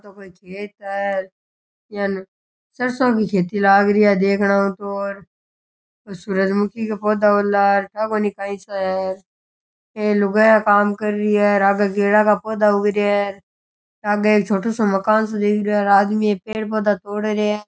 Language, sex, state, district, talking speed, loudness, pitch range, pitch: Rajasthani, male, Rajasthan, Churu, 175 wpm, -18 LUFS, 200-210 Hz, 205 Hz